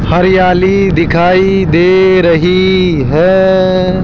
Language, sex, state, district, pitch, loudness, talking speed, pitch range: Hindi, male, Rajasthan, Jaipur, 185 Hz, -9 LUFS, 75 wpm, 175-190 Hz